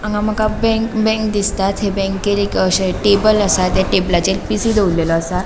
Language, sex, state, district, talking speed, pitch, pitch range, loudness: Konkani, female, Goa, North and South Goa, 175 wpm, 200 Hz, 190-215 Hz, -16 LUFS